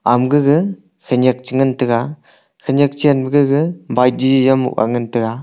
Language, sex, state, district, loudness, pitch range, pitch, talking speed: Wancho, male, Arunachal Pradesh, Longding, -15 LUFS, 125-145 Hz, 130 Hz, 155 wpm